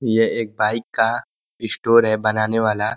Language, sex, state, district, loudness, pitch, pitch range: Hindi, male, Uttar Pradesh, Ghazipur, -19 LUFS, 110 Hz, 110-115 Hz